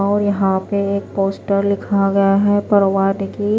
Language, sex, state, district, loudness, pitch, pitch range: Hindi, female, Maharashtra, Washim, -17 LUFS, 200 Hz, 195-200 Hz